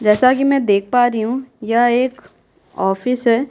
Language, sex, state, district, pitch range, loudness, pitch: Hindi, female, Bihar, Kishanganj, 220-255 Hz, -16 LUFS, 245 Hz